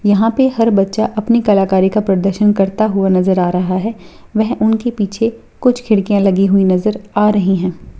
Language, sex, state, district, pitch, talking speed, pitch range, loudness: Hindi, female, Bihar, Purnia, 205 Hz, 185 wpm, 190-220 Hz, -14 LUFS